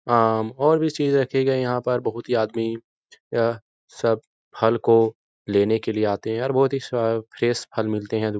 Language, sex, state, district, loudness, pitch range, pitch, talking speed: Hindi, male, Uttar Pradesh, Etah, -22 LUFS, 110-125 Hz, 115 Hz, 205 wpm